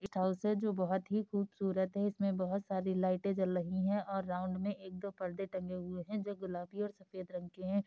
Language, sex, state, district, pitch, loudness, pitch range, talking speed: Hindi, female, Uttar Pradesh, Hamirpur, 190 Hz, -37 LUFS, 185-200 Hz, 260 wpm